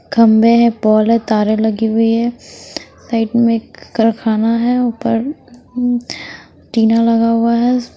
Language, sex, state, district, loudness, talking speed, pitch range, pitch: Hindi, female, Himachal Pradesh, Shimla, -14 LUFS, 130 wpm, 225-235 Hz, 230 Hz